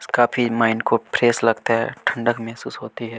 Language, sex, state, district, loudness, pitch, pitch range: Hindi, male, Chhattisgarh, Kabirdham, -20 LUFS, 115 Hz, 115-120 Hz